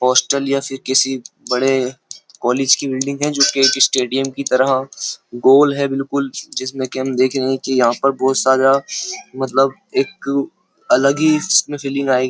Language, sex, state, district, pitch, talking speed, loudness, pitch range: Hindi, male, Uttar Pradesh, Jyotiba Phule Nagar, 135 Hz, 175 wpm, -17 LUFS, 130-140 Hz